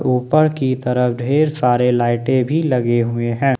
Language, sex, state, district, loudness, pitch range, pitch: Hindi, male, Jharkhand, Ranchi, -17 LUFS, 120-135 Hz, 125 Hz